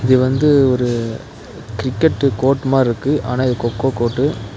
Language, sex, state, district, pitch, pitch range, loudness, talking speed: Tamil, male, Tamil Nadu, Nilgiris, 130 Hz, 120-135 Hz, -16 LUFS, 145 wpm